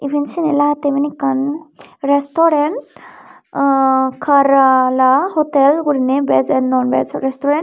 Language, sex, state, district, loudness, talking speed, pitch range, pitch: Chakma, female, Tripura, Unakoti, -15 LUFS, 120 wpm, 265-295 Hz, 280 Hz